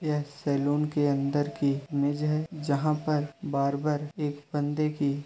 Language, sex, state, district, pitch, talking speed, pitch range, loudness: Hindi, male, Uttar Pradesh, Budaun, 145 Hz, 160 wpm, 140-150 Hz, -29 LUFS